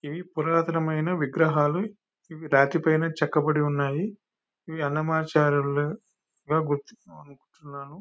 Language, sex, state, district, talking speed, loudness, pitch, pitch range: Telugu, male, Telangana, Nalgonda, 90 wpm, -25 LUFS, 155 Hz, 145-170 Hz